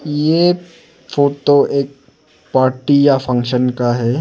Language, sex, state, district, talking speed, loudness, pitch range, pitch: Hindi, male, Arunachal Pradesh, Lower Dibang Valley, 115 wpm, -15 LUFS, 130-155 Hz, 140 Hz